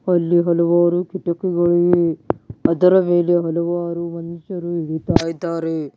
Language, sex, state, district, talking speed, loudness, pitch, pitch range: Kannada, male, Karnataka, Bidar, 100 wpm, -18 LUFS, 170 Hz, 170-175 Hz